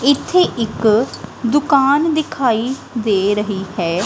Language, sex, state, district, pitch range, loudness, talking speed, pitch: Punjabi, female, Punjab, Kapurthala, 210-280 Hz, -17 LUFS, 105 wpm, 235 Hz